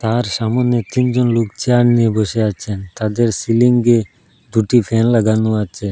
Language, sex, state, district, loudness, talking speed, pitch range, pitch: Bengali, male, Assam, Hailakandi, -16 LUFS, 140 wpm, 110-120 Hz, 115 Hz